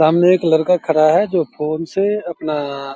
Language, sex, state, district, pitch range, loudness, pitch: Hindi, male, Bihar, Begusarai, 155-180 Hz, -16 LUFS, 160 Hz